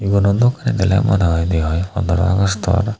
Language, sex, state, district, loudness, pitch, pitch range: Chakma, male, Tripura, Unakoti, -16 LUFS, 95 Hz, 90-100 Hz